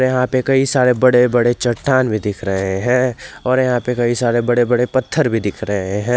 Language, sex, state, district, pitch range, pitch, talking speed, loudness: Hindi, male, Jharkhand, Garhwa, 115-130 Hz, 125 Hz, 225 wpm, -16 LUFS